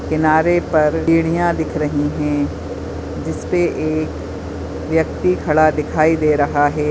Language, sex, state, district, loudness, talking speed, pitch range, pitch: Hindi, female, Maharashtra, Aurangabad, -18 LUFS, 130 wpm, 95-155 Hz, 150 Hz